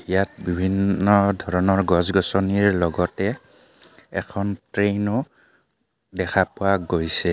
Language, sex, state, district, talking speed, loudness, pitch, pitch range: Assamese, male, Assam, Kamrup Metropolitan, 90 wpm, -22 LUFS, 95 Hz, 90-100 Hz